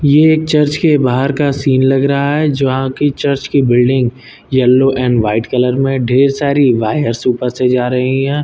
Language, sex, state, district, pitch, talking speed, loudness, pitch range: Hindi, male, Uttar Pradesh, Lucknow, 135 Hz, 200 wpm, -13 LUFS, 125-145 Hz